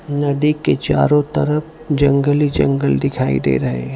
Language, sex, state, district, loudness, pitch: Hindi, male, Gujarat, Valsad, -16 LUFS, 145 Hz